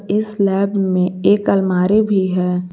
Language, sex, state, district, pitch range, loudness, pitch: Hindi, female, Jharkhand, Garhwa, 180-200 Hz, -16 LUFS, 195 Hz